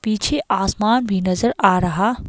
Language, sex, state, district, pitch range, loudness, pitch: Hindi, female, Himachal Pradesh, Shimla, 195-235 Hz, -18 LUFS, 210 Hz